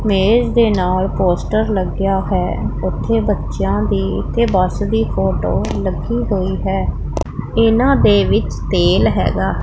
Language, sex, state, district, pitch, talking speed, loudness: Punjabi, female, Punjab, Pathankot, 185 Hz, 135 wpm, -16 LUFS